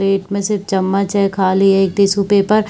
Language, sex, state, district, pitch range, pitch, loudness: Hindi, female, Chhattisgarh, Bilaspur, 195-200 Hz, 195 Hz, -15 LUFS